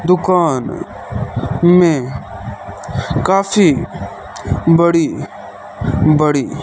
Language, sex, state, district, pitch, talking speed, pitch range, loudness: Hindi, male, Rajasthan, Bikaner, 155 Hz, 45 wpm, 120-175 Hz, -15 LUFS